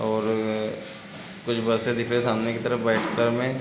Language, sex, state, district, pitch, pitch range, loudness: Hindi, male, Chhattisgarh, Raigarh, 115 Hz, 110-120 Hz, -25 LUFS